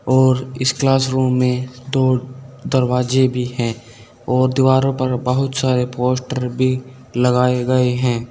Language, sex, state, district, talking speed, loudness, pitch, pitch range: Hindi, male, Uttar Pradesh, Saharanpur, 135 wpm, -18 LUFS, 130 Hz, 125-130 Hz